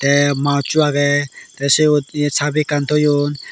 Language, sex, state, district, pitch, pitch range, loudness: Chakma, male, Tripura, Dhalai, 145 Hz, 145-150 Hz, -16 LUFS